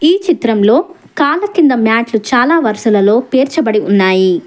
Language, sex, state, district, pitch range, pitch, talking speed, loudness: Telugu, female, Telangana, Hyderabad, 215-320 Hz, 240 Hz, 120 wpm, -11 LUFS